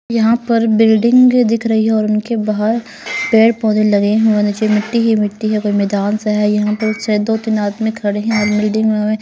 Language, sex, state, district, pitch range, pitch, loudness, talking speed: Hindi, female, Haryana, Rohtak, 210-225 Hz, 215 Hz, -14 LUFS, 215 wpm